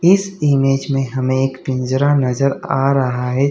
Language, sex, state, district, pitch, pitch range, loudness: Hindi, male, Chhattisgarh, Bilaspur, 135 Hz, 130-140 Hz, -17 LUFS